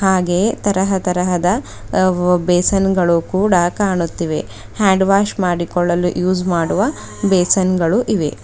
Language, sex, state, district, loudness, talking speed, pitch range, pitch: Kannada, female, Karnataka, Bidar, -16 LUFS, 120 wpm, 175-195 Hz, 185 Hz